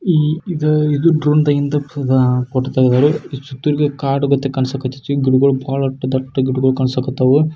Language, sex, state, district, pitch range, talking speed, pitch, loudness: Kannada, male, Karnataka, Shimoga, 130-150 Hz, 105 wpm, 135 Hz, -16 LUFS